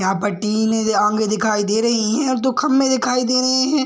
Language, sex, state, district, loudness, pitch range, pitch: Hindi, male, Bihar, Madhepura, -18 LUFS, 215-260 Hz, 230 Hz